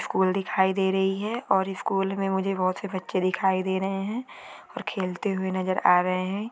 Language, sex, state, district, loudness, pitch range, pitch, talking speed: Hindi, female, Maharashtra, Dhule, -26 LUFS, 185-195 Hz, 190 Hz, 220 wpm